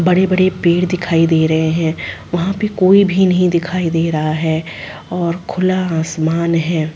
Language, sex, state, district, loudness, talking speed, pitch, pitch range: Hindi, female, Chhattisgarh, Sarguja, -15 LUFS, 165 wpm, 170 Hz, 160-185 Hz